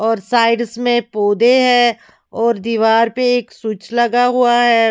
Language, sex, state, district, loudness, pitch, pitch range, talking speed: Hindi, female, Maharashtra, Mumbai Suburban, -14 LUFS, 235 Hz, 225-245 Hz, 160 wpm